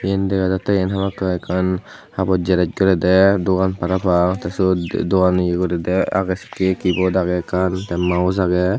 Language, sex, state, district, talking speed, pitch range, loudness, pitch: Chakma, male, Tripura, Unakoti, 165 wpm, 90-95 Hz, -18 LUFS, 95 Hz